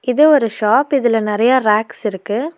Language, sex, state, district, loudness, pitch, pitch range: Tamil, female, Tamil Nadu, Nilgiris, -15 LUFS, 230 Hz, 210-270 Hz